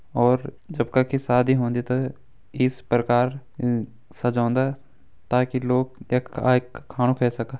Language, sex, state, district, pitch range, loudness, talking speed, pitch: Hindi, male, Uttarakhand, Tehri Garhwal, 120-130 Hz, -23 LUFS, 125 wpm, 125 Hz